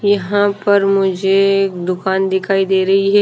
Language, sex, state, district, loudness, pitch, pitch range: Hindi, female, Himachal Pradesh, Shimla, -15 LUFS, 195 Hz, 190-200 Hz